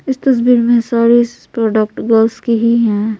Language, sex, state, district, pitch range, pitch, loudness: Hindi, female, Bihar, Patna, 225-240 Hz, 235 Hz, -13 LUFS